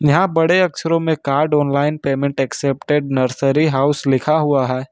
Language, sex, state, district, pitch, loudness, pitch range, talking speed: Hindi, male, Jharkhand, Ranchi, 145 Hz, -17 LUFS, 135-155 Hz, 160 wpm